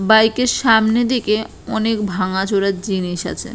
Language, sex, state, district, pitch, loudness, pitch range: Bengali, female, West Bengal, Purulia, 215 Hz, -17 LUFS, 190-225 Hz